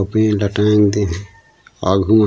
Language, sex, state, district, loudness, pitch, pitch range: Chhattisgarhi, male, Chhattisgarh, Raigarh, -16 LUFS, 100 Hz, 100-105 Hz